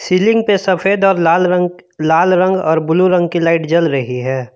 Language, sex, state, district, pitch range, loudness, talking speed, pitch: Hindi, male, Jharkhand, Palamu, 160-185 Hz, -13 LUFS, 210 wpm, 175 Hz